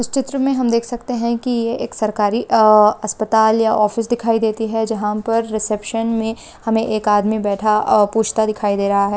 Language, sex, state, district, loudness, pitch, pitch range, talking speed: Hindi, female, West Bengal, Malda, -17 LUFS, 220 Hz, 210-230 Hz, 210 wpm